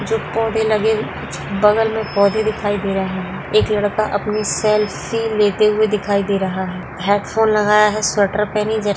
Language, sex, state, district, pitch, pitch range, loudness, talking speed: Hindi, female, Rajasthan, Nagaur, 210 Hz, 200-215 Hz, -17 LUFS, 180 wpm